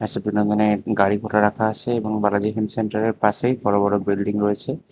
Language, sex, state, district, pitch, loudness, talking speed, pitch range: Bengali, male, Tripura, West Tripura, 105 Hz, -21 LUFS, 185 wpm, 105-110 Hz